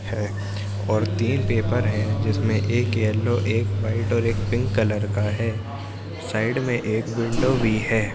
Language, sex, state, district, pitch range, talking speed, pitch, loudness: Hindi, male, Uttar Pradesh, Jyotiba Phule Nagar, 100-115 Hz, 160 wpm, 110 Hz, -23 LUFS